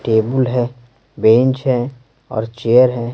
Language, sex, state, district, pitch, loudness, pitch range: Hindi, male, Bihar, Patna, 120 Hz, -16 LUFS, 115-130 Hz